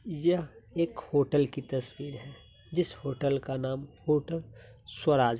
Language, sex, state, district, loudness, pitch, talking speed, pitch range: Hindi, male, Bihar, Muzaffarpur, -31 LUFS, 140 Hz, 135 wpm, 125-150 Hz